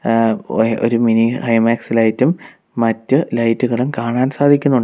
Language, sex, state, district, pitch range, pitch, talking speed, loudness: Malayalam, male, Kerala, Kollam, 115-130 Hz, 115 Hz, 135 wpm, -16 LUFS